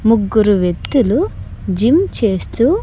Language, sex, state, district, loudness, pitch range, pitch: Telugu, male, Andhra Pradesh, Sri Satya Sai, -15 LUFS, 195-240 Hz, 220 Hz